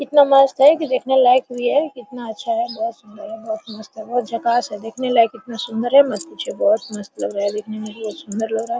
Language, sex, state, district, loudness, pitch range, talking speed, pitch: Hindi, female, Bihar, Araria, -19 LUFS, 220-275 Hz, 265 wpm, 240 Hz